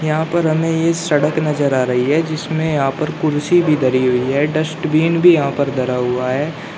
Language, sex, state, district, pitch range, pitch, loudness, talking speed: Hindi, male, Uttar Pradesh, Shamli, 135-160 Hz, 155 Hz, -16 LUFS, 210 wpm